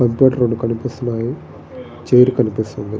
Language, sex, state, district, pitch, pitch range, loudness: Telugu, male, Andhra Pradesh, Srikakulam, 120 Hz, 115-125 Hz, -17 LUFS